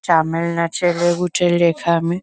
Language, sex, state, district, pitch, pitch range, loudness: Bengali, female, West Bengal, Kolkata, 170 Hz, 170-175 Hz, -18 LUFS